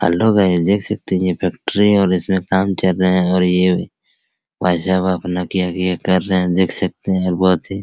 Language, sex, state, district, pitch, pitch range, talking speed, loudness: Hindi, male, Bihar, Araria, 95 Hz, 90-95 Hz, 230 wpm, -17 LUFS